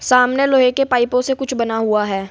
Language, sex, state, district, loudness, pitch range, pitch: Hindi, female, Uttar Pradesh, Saharanpur, -16 LUFS, 225-265 Hz, 250 Hz